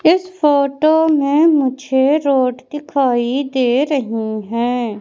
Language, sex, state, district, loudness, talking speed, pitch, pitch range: Hindi, male, Madhya Pradesh, Katni, -16 LUFS, 110 wpm, 275 Hz, 245-295 Hz